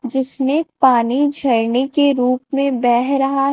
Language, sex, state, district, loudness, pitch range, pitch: Hindi, female, Chhattisgarh, Raipur, -16 LUFS, 250-275 Hz, 270 Hz